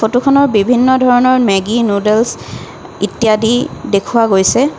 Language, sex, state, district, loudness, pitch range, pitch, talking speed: Assamese, female, Assam, Kamrup Metropolitan, -12 LUFS, 210-250 Hz, 230 Hz, 100 wpm